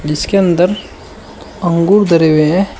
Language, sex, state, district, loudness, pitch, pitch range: Hindi, male, Uttar Pradesh, Shamli, -12 LUFS, 175 Hz, 160-195 Hz